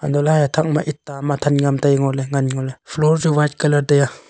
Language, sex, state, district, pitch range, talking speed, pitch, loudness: Wancho, male, Arunachal Pradesh, Longding, 140-150 Hz, 295 wpm, 145 Hz, -18 LUFS